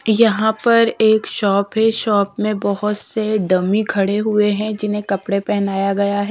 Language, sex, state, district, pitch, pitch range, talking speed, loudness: Hindi, female, Bihar, Patna, 210 Hz, 200-220 Hz, 170 wpm, -17 LUFS